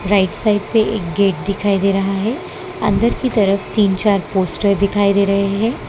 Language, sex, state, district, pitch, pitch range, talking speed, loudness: Hindi, female, Gujarat, Valsad, 200 Hz, 195-210 Hz, 195 wpm, -16 LUFS